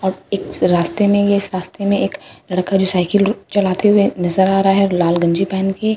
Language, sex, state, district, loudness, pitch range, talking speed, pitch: Hindi, female, Bihar, Katihar, -16 LUFS, 185-200 Hz, 220 wpm, 195 Hz